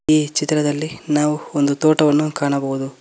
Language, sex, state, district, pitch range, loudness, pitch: Kannada, male, Karnataka, Koppal, 145-155 Hz, -18 LUFS, 150 Hz